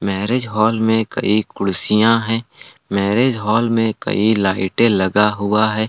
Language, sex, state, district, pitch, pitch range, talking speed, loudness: Hindi, male, Jharkhand, Palamu, 110 Hz, 100-115 Hz, 145 wpm, -16 LUFS